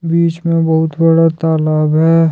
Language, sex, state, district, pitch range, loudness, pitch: Hindi, male, Jharkhand, Deoghar, 160-165 Hz, -13 LUFS, 165 Hz